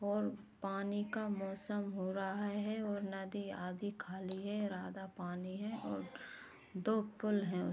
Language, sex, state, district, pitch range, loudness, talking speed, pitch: Hindi, female, Jharkhand, Jamtara, 190-210 Hz, -41 LUFS, 145 wpm, 200 Hz